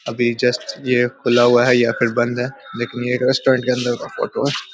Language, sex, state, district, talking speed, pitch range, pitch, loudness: Hindi, male, Bihar, Darbhanga, 165 wpm, 120-125 Hz, 120 Hz, -18 LUFS